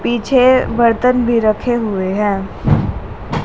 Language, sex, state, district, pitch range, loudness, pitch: Hindi, female, Haryana, Rohtak, 210-245 Hz, -15 LUFS, 235 Hz